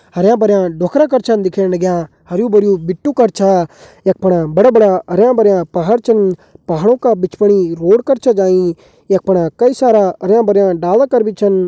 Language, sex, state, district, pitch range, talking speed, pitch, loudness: Hindi, male, Uttarakhand, Uttarkashi, 185-225 Hz, 195 wpm, 195 Hz, -12 LUFS